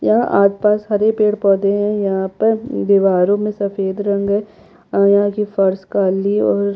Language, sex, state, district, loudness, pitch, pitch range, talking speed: Hindi, female, Chhattisgarh, Jashpur, -16 LUFS, 200 Hz, 195-210 Hz, 150 wpm